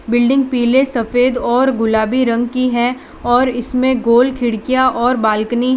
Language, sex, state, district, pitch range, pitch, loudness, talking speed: Hindi, female, Gujarat, Valsad, 235-255 Hz, 245 Hz, -15 LUFS, 155 wpm